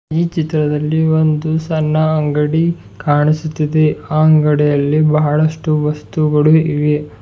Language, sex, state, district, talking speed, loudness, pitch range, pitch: Kannada, male, Karnataka, Bidar, 85 wpm, -14 LUFS, 150-155 Hz, 155 Hz